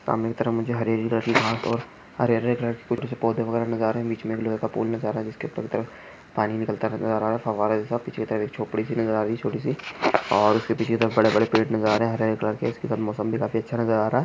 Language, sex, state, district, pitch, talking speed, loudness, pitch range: Hindi, male, Maharashtra, Chandrapur, 110 Hz, 295 wpm, -25 LUFS, 110-115 Hz